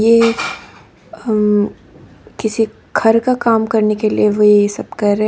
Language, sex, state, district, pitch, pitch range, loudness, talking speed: Hindi, female, Nagaland, Dimapur, 220 Hz, 210-230 Hz, -15 LUFS, 160 wpm